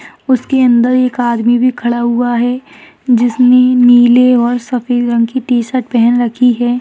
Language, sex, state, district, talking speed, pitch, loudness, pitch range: Hindi, female, Maharashtra, Solapur, 160 wpm, 245 Hz, -11 LUFS, 240-250 Hz